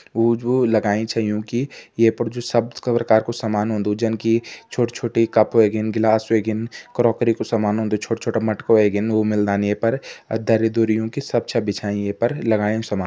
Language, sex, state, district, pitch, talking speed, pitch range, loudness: Garhwali, male, Uttarakhand, Tehri Garhwal, 110 Hz, 190 wpm, 110-115 Hz, -20 LUFS